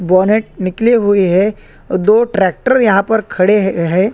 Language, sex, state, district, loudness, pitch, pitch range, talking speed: Hindi, male, Chhattisgarh, Korba, -13 LUFS, 200 Hz, 185-220 Hz, 160 wpm